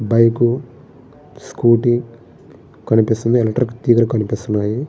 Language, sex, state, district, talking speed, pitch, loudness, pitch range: Telugu, male, Andhra Pradesh, Srikakulam, 75 wpm, 115 Hz, -16 LUFS, 110-120 Hz